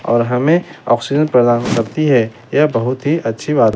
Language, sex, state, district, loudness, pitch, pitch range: Hindi, male, Bihar, West Champaran, -15 LUFS, 125 Hz, 120-150 Hz